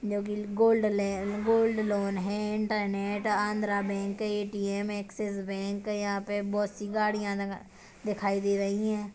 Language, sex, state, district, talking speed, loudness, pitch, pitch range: Hindi, female, Chhattisgarh, Kabirdham, 170 wpm, -30 LUFS, 205 Hz, 200-210 Hz